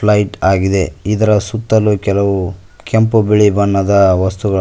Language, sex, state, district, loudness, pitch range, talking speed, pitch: Kannada, male, Karnataka, Koppal, -13 LUFS, 95-105 Hz, 115 wpm, 100 Hz